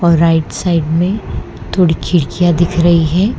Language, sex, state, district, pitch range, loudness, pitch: Hindi, female, Gujarat, Valsad, 165-175 Hz, -13 LUFS, 170 Hz